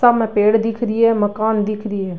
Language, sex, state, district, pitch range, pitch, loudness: Rajasthani, female, Rajasthan, Nagaur, 210-225 Hz, 220 Hz, -17 LUFS